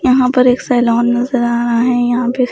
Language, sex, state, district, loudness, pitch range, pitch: Hindi, female, Bihar, Patna, -13 LUFS, 240-250 Hz, 245 Hz